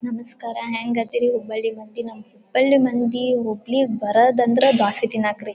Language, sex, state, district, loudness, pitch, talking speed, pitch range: Kannada, female, Karnataka, Dharwad, -20 LUFS, 235 Hz, 120 wpm, 220-245 Hz